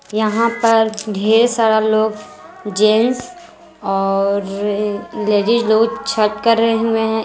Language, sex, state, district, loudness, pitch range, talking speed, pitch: Hindi, female, Jharkhand, Garhwa, -16 LUFS, 210-230 Hz, 105 wpm, 220 Hz